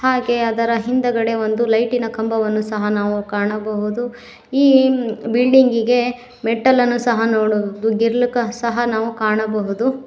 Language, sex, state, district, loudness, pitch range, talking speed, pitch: Kannada, female, Karnataka, Koppal, -17 LUFS, 220-245 Hz, 105 wpm, 230 Hz